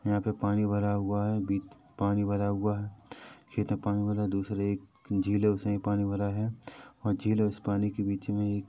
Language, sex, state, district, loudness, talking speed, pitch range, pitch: Hindi, male, Chhattisgarh, Rajnandgaon, -30 LUFS, 230 wpm, 100-105 Hz, 100 Hz